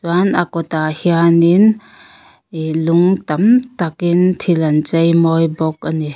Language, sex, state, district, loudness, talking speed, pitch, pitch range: Mizo, female, Mizoram, Aizawl, -14 LUFS, 135 wpm, 170 Hz, 160-180 Hz